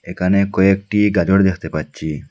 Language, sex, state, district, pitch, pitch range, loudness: Bengali, male, Assam, Hailakandi, 95 Hz, 80-100 Hz, -17 LUFS